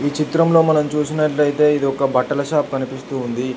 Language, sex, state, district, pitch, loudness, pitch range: Telugu, male, Telangana, Hyderabad, 145 Hz, -18 LUFS, 135-150 Hz